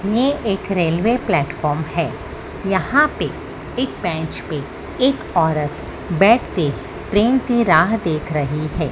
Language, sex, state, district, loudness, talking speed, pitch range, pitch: Hindi, female, Maharashtra, Mumbai Suburban, -19 LUFS, 135 wpm, 155-230 Hz, 175 Hz